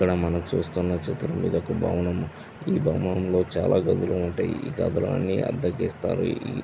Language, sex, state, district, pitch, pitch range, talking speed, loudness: Telugu, male, Andhra Pradesh, Visakhapatnam, 90 Hz, 85-90 Hz, 170 wpm, -26 LUFS